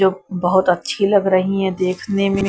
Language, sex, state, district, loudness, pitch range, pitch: Hindi, female, Punjab, Kapurthala, -18 LUFS, 185-195 Hz, 190 Hz